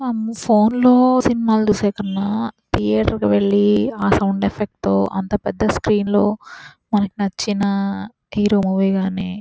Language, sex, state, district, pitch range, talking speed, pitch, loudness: Telugu, female, Andhra Pradesh, Chittoor, 160-215 Hz, 140 wpm, 205 Hz, -18 LUFS